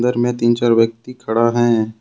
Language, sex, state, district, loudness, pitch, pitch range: Hindi, male, Jharkhand, Deoghar, -16 LUFS, 120 Hz, 115-120 Hz